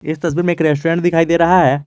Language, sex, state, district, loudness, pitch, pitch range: Hindi, male, Jharkhand, Garhwa, -14 LUFS, 165 Hz, 155-175 Hz